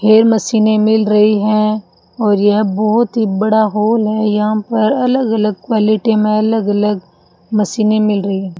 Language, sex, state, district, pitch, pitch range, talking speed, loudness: Hindi, female, Rajasthan, Bikaner, 215 Hz, 210-220 Hz, 165 wpm, -14 LUFS